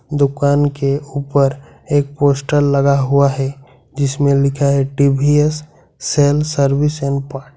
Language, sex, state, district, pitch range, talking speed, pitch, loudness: Hindi, male, Jharkhand, Ranchi, 140-145 Hz, 135 wpm, 140 Hz, -16 LUFS